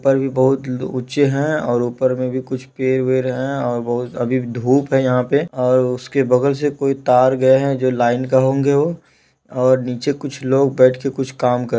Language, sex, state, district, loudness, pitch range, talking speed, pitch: Hindi, male, Bihar, Supaul, -17 LUFS, 125-135 Hz, 220 wpm, 130 Hz